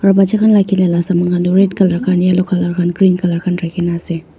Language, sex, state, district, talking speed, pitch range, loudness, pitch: Nagamese, female, Nagaland, Dimapur, 315 wpm, 175-190 Hz, -14 LUFS, 180 Hz